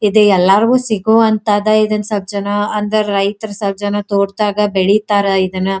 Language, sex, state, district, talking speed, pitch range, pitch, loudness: Kannada, female, Karnataka, Dharwad, 135 wpm, 200-215 Hz, 205 Hz, -14 LUFS